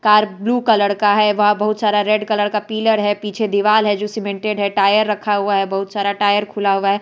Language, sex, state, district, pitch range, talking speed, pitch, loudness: Hindi, female, Bihar, West Champaran, 205-215 Hz, 250 wpm, 210 Hz, -17 LUFS